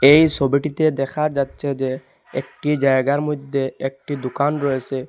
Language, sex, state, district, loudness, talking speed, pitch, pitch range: Bengali, male, Assam, Hailakandi, -20 LUFS, 130 wpm, 140 Hz, 135-150 Hz